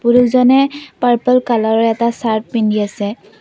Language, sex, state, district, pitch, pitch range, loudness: Assamese, female, Assam, Kamrup Metropolitan, 235 Hz, 220-250 Hz, -14 LUFS